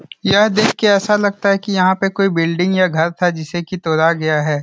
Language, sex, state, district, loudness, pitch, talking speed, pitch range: Hindi, male, Bihar, Jahanabad, -15 LUFS, 185 Hz, 245 wpm, 165-200 Hz